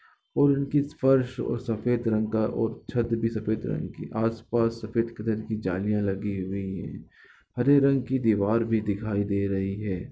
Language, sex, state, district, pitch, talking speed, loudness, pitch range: Hindi, male, Chhattisgarh, Balrampur, 110 Hz, 180 wpm, -27 LUFS, 105-120 Hz